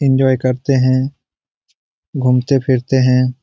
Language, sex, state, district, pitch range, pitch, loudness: Hindi, male, Bihar, Jamui, 125-135 Hz, 130 Hz, -15 LUFS